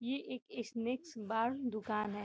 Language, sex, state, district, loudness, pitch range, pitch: Hindi, female, Bihar, Gopalganj, -39 LUFS, 215-250 Hz, 235 Hz